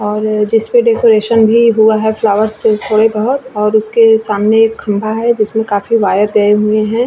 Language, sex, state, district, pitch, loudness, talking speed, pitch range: Hindi, female, Bihar, Vaishali, 220 Hz, -11 LUFS, 205 wpm, 210-225 Hz